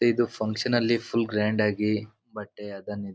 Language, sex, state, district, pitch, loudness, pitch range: Kannada, male, Karnataka, Bijapur, 105 Hz, -26 LUFS, 105-115 Hz